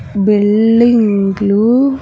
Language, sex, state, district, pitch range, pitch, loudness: Telugu, female, Andhra Pradesh, Sri Satya Sai, 205-235 Hz, 210 Hz, -11 LUFS